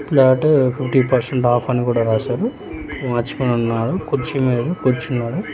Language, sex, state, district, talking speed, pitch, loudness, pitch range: Telugu, male, Telangana, Hyderabad, 140 wpm, 130 Hz, -18 LUFS, 120-140 Hz